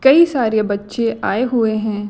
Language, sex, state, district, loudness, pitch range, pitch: Hindi, female, Chhattisgarh, Raipur, -17 LUFS, 210-250 Hz, 225 Hz